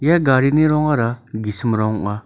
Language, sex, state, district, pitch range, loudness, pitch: Garo, male, Meghalaya, North Garo Hills, 110-150 Hz, -17 LUFS, 120 Hz